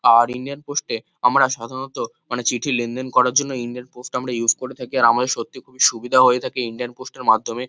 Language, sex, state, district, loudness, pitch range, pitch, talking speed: Bengali, male, West Bengal, Kolkata, -20 LUFS, 120-130 Hz, 125 Hz, 220 wpm